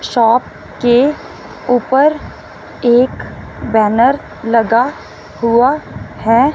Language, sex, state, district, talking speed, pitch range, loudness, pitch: Hindi, female, Punjab, Fazilka, 75 wpm, 230-265 Hz, -13 LUFS, 245 Hz